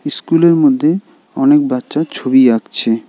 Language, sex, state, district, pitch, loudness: Bengali, male, West Bengal, Alipurduar, 165 Hz, -13 LUFS